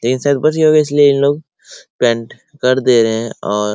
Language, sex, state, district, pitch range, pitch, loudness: Hindi, male, Bihar, Araria, 115-145 Hz, 130 Hz, -14 LUFS